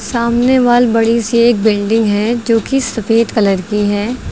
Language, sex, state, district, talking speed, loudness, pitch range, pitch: Hindi, female, Uttar Pradesh, Lucknow, 180 wpm, -13 LUFS, 215-235 Hz, 230 Hz